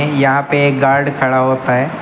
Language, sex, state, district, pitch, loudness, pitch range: Hindi, male, Uttar Pradesh, Lucknow, 140 Hz, -13 LUFS, 130-140 Hz